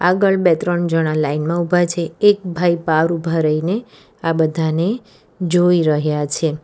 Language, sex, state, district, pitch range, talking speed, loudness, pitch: Gujarati, female, Gujarat, Valsad, 160-180 Hz, 160 wpm, -17 LUFS, 170 Hz